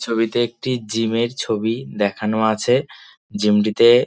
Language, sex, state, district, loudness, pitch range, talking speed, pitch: Bengali, male, West Bengal, Dakshin Dinajpur, -19 LUFS, 110-120 Hz, 135 wpm, 115 Hz